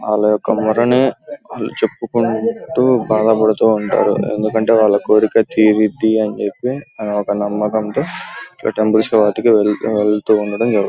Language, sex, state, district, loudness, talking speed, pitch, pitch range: Telugu, male, Andhra Pradesh, Guntur, -15 LUFS, 120 wpm, 110 Hz, 105-115 Hz